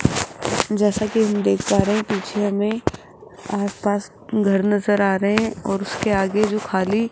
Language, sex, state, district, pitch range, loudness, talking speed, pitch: Hindi, female, Rajasthan, Jaipur, 200-215 Hz, -21 LUFS, 175 wpm, 205 Hz